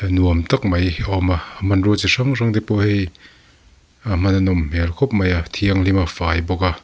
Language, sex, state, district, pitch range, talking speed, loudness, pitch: Mizo, male, Mizoram, Aizawl, 85-100 Hz, 245 wpm, -18 LUFS, 95 Hz